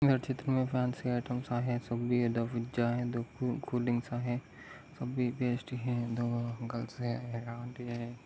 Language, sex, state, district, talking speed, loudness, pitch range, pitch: Hindi, male, Maharashtra, Dhule, 115 wpm, -34 LUFS, 120-125 Hz, 120 Hz